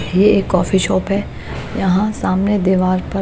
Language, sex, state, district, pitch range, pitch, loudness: Hindi, female, Chhattisgarh, Raipur, 185-200 Hz, 190 Hz, -16 LUFS